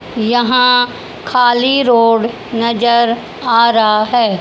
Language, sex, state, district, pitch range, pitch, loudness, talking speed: Hindi, female, Haryana, Charkhi Dadri, 230-245 Hz, 235 Hz, -12 LUFS, 95 wpm